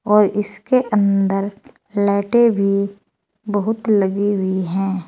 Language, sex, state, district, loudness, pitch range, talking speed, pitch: Hindi, female, Uttar Pradesh, Saharanpur, -18 LUFS, 195-210 Hz, 105 wpm, 205 Hz